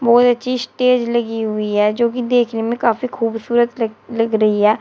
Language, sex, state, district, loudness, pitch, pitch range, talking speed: Hindi, female, Uttar Pradesh, Shamli, -17 LUFS, 235 Hz, 225-245 Hz, 185 wpm